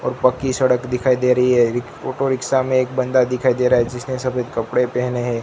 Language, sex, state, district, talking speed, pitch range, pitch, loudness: Hindi, male, Gujarat, Gandhinagar, 245 wpm, 125-130 Hz, 125 Hz, -18 LUFS